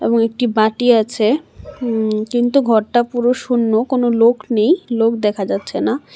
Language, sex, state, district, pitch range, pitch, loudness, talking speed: Bengali, female, Tripura, West Tripura, 220-245 Hz, 235 Hz, -16 LUFS, 155 wpm